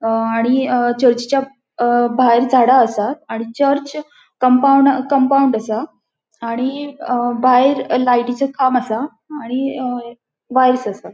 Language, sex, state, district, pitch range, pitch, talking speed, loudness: Konkani, female, Goa, North and South Goa, 240-275 Hz, 255 Hz, 95 wpm, -16 LUFS